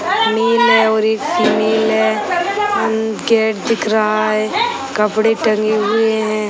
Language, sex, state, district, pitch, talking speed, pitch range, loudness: Hindi, female, Uttar Pradesh, Gorakhpur, 220 Hz, 120 wpm, 215-235 Hz, -15 LUFS